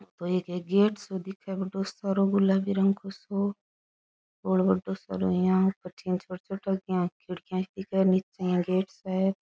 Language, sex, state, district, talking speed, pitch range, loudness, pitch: Rajasthani, female, Rajasthan, Churu, 180 wpm, 180-195 Hz, -28 LUFS, 190 Hz